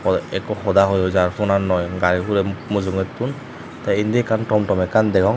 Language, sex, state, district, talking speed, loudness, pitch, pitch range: Chakma, male, Tripura, Dhalai, 190 wpm, -19 LUFS, 100 Hz, 95-105 Hz